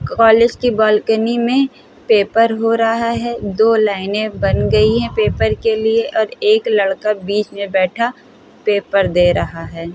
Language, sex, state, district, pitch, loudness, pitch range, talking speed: Hindi, female, Uttar Pradesh, Hamirpur, 225 Hz, -15 LUFS, 205-235 Hz, 155 wpm